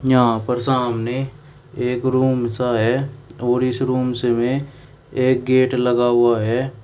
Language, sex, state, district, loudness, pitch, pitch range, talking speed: Hindi, male, Uttar Pradesh, Shamli, -19 LUFS, 125 Hz, 120-130 Hz, 150 wpm